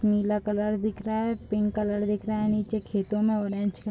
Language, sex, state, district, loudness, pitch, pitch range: Hindi, female, Bihar, Madhepura, -28 LUFS, 210 Hz, 210-215 Hz